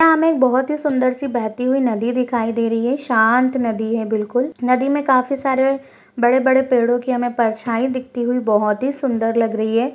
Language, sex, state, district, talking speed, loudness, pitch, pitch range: Hindi, female, Uttarakhand, Uttarkashi, 210 wpm, -18 LUFS, 250 Hz, 230-265 Hz